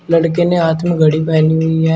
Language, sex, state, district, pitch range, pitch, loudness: Hindi, male, Uttar Pradesh, Shamli, 160-170 Hz, 160 Hz, -13 LUFS